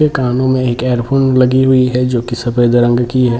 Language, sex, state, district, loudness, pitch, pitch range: Hindi, male, Jharkhand, Jamtara, -13 LUFS, 125 Hz, 120-130 Hz